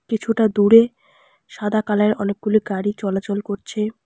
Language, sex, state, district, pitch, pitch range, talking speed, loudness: Bengali, female, West Bengal, Alipurduar, 210 Hz, 205-225 Hz, 120 wpm, -19 LUFS